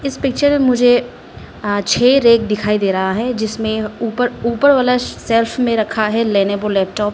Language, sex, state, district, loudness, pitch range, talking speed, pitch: Hindi, female, Arunachal Pradesh, Lower Dibang Valley, -15 LUFS, 210-245 Hz, 175 wpm, 230 Hz